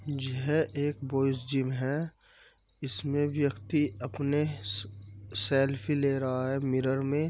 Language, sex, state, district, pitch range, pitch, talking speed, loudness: Hindi, male, Uttar Pradesh, Muzaffarnagar, 130-145 Hz, 135 Hz, 125 wpm, -30 LUFS